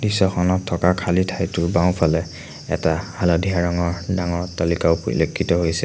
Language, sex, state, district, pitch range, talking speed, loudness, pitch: Assamese, male, Assam, Sonitpur, 85-95 Hz, 125 wpm, -20 LUFS, 85 Hz